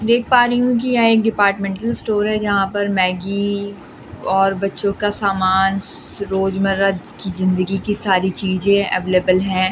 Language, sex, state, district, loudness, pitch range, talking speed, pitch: Hindi, female, Delhi, New Delhi, -18 LUFS, 190-205 Hz, 155 wpm, 195 Hz